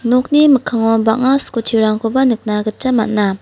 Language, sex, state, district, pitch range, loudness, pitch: Garo, female, Meghalaya, South Garo Hills, 215-260 Hz, -14 LUFS, 230 Hz